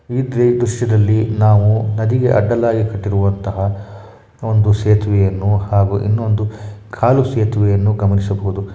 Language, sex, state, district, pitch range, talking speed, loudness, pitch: Kannada, male, Karnataka, Shimoga, 100-115 Hz, 90 wpm, -15 LUFS, 105 Hz